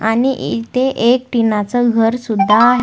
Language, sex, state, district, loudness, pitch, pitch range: Marathi, female, Maharashtra, Washim, -15 LUFS, 230 Hz, 225-250 Hz